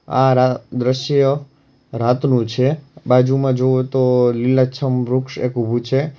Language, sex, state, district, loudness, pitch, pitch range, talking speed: Gujarati, male, Gujarat, Valsad, -17 LUFS, 130 Hz, 125-135 Hz, 125 wpm